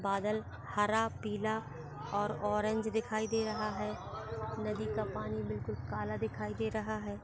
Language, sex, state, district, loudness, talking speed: Hindi, female, Maharashtra, Chandrapur, -36 LUFS, 150 wpm